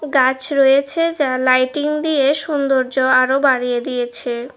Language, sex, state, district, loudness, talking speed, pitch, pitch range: Bengali, female, Tripura, West Tripura, -16 LUFS, 120 wpm, 265 Hz, 255-290 Hz